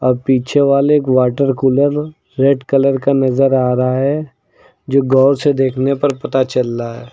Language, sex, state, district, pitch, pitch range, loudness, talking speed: Hindi, male, Uttar Pradesh, Lucknow, 135 Hz, 130-140 Hz, -14 LUFS, 185 wpm